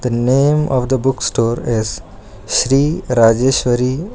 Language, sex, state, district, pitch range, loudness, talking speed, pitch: English, male, Karnataka, Bangalore, 115-135 Hz, -15 LUFS, 130 wpm, 125 Hz